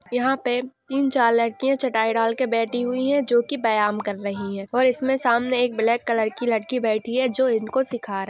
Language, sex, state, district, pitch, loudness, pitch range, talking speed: Hindi, female, Uttar Pradesh, Gorakhpur, 240 Hz, -22 LUFS, 225-255 Hz, 230 wpm